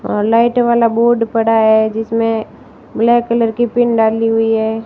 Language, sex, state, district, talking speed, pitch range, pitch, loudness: Hindi, female, Rajasthan, Barmer, 175 wpm, 225-235 Hz, 225 Hz, -13 LUFS